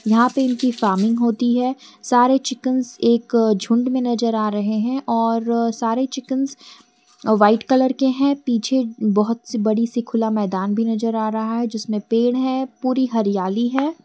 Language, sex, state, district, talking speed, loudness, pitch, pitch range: Hindi, female, Jharkhand, Garhwa, 170 wpm, -19 LUFS, 235 Hz, 225-255 Hz